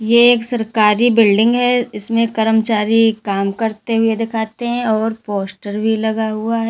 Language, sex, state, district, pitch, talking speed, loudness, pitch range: Hindi, female, Uttar Pradesh, Lalitpur, 225 Hz, 160 wpm, -16 LUFS, 215-230 Hz